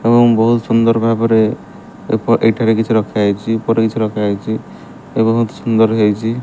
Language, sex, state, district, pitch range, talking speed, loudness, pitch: Odia, male, Odisha, Malkangiri, 110-115 Hz, 170 wpm, -14 LUFS, 115 Hz